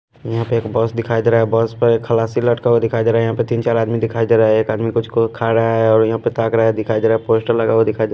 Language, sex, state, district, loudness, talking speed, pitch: Hindi, male, Punjab, Pathankot, -16 LUFS, 355 wpm, 115 Hz